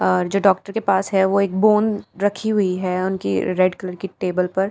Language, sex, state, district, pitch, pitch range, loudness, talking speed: Hindi, female, Bihar, Katihar, 190 Hz, 185-200 Hz, -20 LUFS, 230 wpm